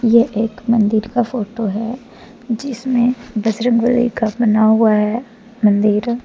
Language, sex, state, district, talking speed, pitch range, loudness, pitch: Hindi, female, Jharkhand, Deoghar, 125 wpm, 220-240 Hz, -16 LUFS, 230 Hz